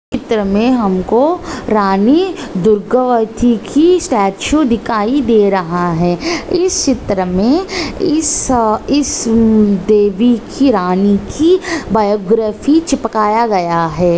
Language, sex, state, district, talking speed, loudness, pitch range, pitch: Hindi, female, Chhattisgarh, Bastar, 100 wpm, -13 LUFS, 205-285 Hz, 230 Hz